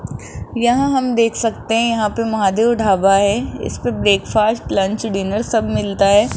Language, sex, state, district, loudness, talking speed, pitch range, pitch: Hindi, female, Rajasthan, Jaipur, -17 LUFS, 160 wpm, 200-230 Hz, 220 Hz